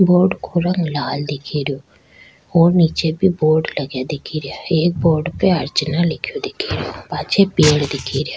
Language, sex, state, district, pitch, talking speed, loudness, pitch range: Rajasthani, female, Rajasthan, Churu, 160 Hz, 165 wpm, -18 LUFS, 145-180 Hz